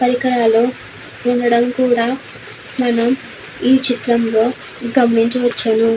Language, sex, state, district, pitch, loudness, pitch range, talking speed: Telugu, female, Andhra Pradesh, Krishna, 245 Hz, -16 LUFS, 230-250 Hz, 70 wpm